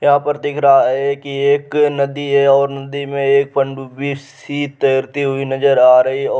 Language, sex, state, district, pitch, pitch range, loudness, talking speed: Hindi, male, Uttar Pradesh, Muzaffarnagar, 140 Hz, 135-140 Hz, -15 LUFS, 215 wpm